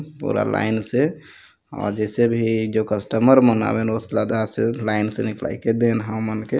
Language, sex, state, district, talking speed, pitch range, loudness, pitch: Chhattisgarhi, male, Chhattisgarh, Jashpur, 135 wpm, 110-120 Hz, -21 LUFS, 110 Hz